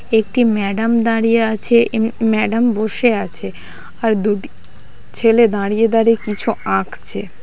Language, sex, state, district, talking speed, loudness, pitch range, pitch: Bengali, female, West Bengal, Purulia, 130 wpm, -16 LUFS, 215-230 Hz, 225 Hz